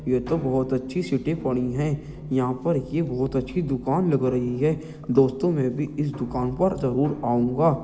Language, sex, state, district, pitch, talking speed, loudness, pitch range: Hindi, male, Uttar Pradesh, Jyotiba Phule Nagar, 135 Hz, 185 wpm, -24 LUFS, 130-155 Hz